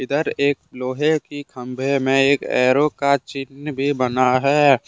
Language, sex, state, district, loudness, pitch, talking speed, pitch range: Hindi, male, Jharkhand, Deoghar, -19 LUFS, 140 Hz, 160 wpm, 130-145 Hz